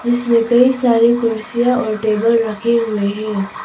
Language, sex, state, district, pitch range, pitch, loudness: Hindi, female, Arunachal Pradesh, Papum Pare, 215-240 Hz, 230 Hz, -15 LUFS